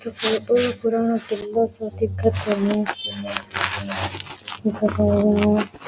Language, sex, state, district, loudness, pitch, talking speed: Rajasthani, female, Rajasthan, Nagaur, -22 LUFS, 210 Hz, 90 wpm